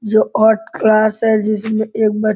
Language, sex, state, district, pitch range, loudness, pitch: Hindi, male, Uttar Pradesh, Gorakhpur, 215-220 Hz, -15 LUFS, 215 Hz